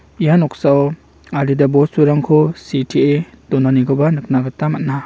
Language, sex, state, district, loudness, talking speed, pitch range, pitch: Garo, male, Meghalaya, West Garo Hills, -15 LUFS, 105 wpm, 135-150 Hz, 145 Hz